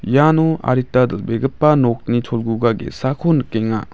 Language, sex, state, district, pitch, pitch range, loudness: Garo, male, Meghalaya, West Garo Hills, 125 Hz, 115-145 Hz, -17 LUFS